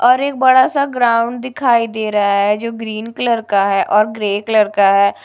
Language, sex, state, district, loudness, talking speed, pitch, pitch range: Hindi, female, Punjab, Kapurthala, -15 LUFS, 205 wpm, 225 Hz, 205-245 Hz